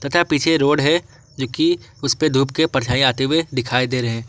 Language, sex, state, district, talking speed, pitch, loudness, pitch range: Hindi, male, Jharkhand, Garhwa, 240 wpm, 135 Hz, -18 LUFS, 125-155 Hz